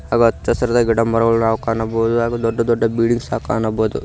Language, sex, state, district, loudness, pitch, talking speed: Kannada, male, Karnataka, Koppal, -17 LUFS, 115 Hz, 150 wpm